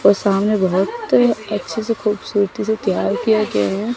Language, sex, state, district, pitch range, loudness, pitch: Hindi, female, Chandigarh, Chandigarh, 195-220 Hz, -18 LUFS, 210 Hz